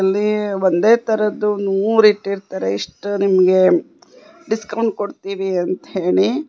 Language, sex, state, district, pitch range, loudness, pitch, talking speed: Kannada, female, Karnataka, Bangalore, 190-220 Hz, -17 LUFS, 205 Hz, 100 wpm